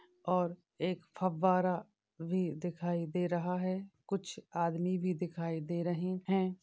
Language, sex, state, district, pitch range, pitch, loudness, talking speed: Hindi, female, Uttar Pradesh, Jalaun, 175-185 Hz, 180 Hz, -35 LUFS, 135 wpm